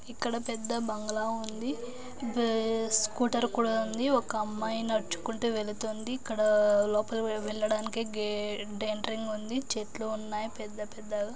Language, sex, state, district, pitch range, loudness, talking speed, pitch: Telugu, female, Andhra Pradesh, Anantapur, 215-235 Hz, -31 LUFS, 115 wpm, 220 Hz